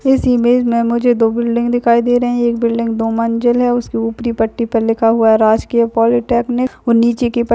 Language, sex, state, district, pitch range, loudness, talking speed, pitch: Hindi, male, Uttarakhand, Uttarkashi, 230-240 Hz, -14 LUFS, 240 wpm, 235 Hz